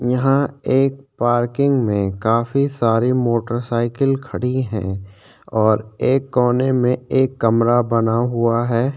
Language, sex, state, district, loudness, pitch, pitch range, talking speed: Hindi, male, Chhattisgarh, Korba, -18 LUFS, 120 Hz, 115-130 Hz, 120 wpm